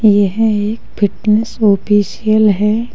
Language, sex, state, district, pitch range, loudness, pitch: Hindi, female, Uttar Pradesh, Saharanpur, 205-220 Hz, -14 LUFS, 210 Hz